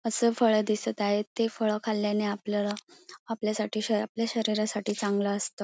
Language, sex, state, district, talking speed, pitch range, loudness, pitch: Marathi, female, Maharashtra, Pune, 140 wpm, 210-225 Hz, -28 LUFS, 215 Hz